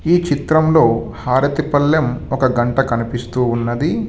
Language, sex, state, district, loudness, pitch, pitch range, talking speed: Telugu, male, Telangana, Hyderabad, -16 LUFS, 135 Hz, 120-155 Hz, 115 wpm